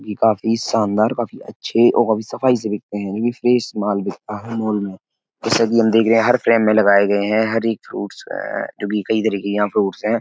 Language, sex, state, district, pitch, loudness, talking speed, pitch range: Hindi, male, Uttar Pradesh, Etah, 110 Hz, -18 LUFS, 240 wpm, 105-115 Hz